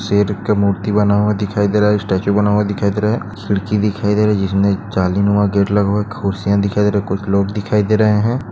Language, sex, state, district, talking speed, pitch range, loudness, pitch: Hindi, male, Maharashtra, Chandrapur, 275 wpm, 100-105 Hz, -16 LUFS, 105 Hz